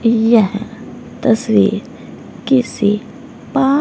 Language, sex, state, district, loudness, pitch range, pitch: Hindi, female, Haryana, Rohtak, -15 LUFS, 215-250 Hz, 230 Hz